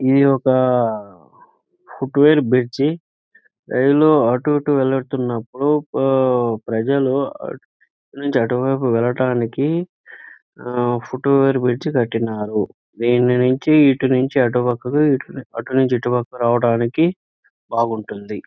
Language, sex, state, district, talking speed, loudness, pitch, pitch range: Telugu, male, Andhra Pradesh, Anantapur, 105 wpm, -18 LUFS, 130 Hz, 120-140 Hz